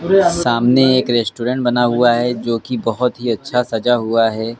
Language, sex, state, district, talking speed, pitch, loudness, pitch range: Hindi, male, Uttar Pradesh, Lucknow, 180 wpm, 120 Hz, -16 LUFS, 115-125 Hz